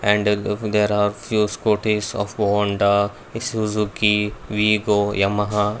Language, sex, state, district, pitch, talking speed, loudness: English, male, Karnataka, Bangalore, 105 Hz, 105 wpm, -20 LUFS